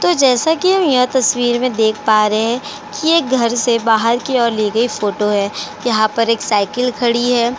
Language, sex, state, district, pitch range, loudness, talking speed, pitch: Hindi, female, Uttar Pradesh, Jalaun, 220-260 Hz, -15 LUFS, 220 wpm, 240 Hz